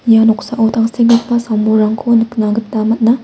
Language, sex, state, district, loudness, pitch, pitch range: Garo, female, Meghalaya, West Garo Hills, -13 LUFS, 225 Hz, 220-235 Hz